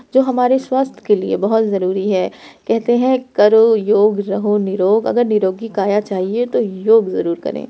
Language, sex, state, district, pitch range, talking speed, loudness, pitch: Hindi, female, Uttar Pradesh, Etah, 200-240 Hz, 170 wpm, -16 LUFS, 215 Hz